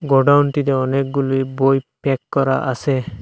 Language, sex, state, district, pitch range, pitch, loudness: Bengali, male, Assam, Hailakandi, 135-140 Hz, 135 Hz, -18 LUFS